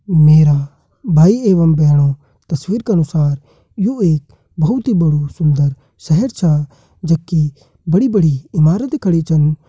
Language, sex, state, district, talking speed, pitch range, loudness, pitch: Kumaoni, male, Uttarakhand, Tehri Garhwal, 125 wpm, 145-180 Hz, -14 LUFS, 155 Hz